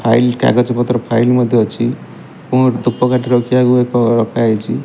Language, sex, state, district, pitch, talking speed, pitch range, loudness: Odia, male, Odisha, Malkangiri, 120 Hz, 125 wpm, 115-125 Hz, -14 LUFS